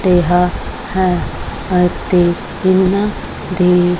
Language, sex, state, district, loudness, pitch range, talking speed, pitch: Punjabi, female, Punjab, Kapurthala, -15 LUFS, 180-190 Hz, 75 wpm, 180 Hz